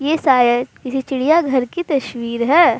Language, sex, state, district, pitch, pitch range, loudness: Hindi, female, Uttar Pradesh, Jalaun, 265 Hz, 250-310 Hz, -17 LUFS